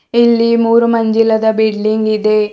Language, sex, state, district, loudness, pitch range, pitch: Kannada, female, Karnataka, Bidar, -12 LUFS, 215-230 Hz, 220 Hz